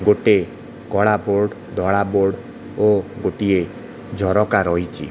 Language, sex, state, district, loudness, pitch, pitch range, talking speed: Odia, male, Odisha, Khordha, -19 LUFS, 100 Hz, 95-105 Hz, 115 wpm